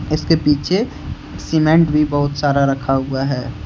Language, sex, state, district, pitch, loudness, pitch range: Hindi, male, Jharkhand, Deoghar, 145 Hz, -17 LUFS, 135-155 Hz